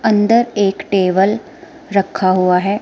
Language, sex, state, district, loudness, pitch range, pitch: Hindi, female, Himachal Pradesh, Shimla, -15 LUFS, 190-230 Hz, 200 Hz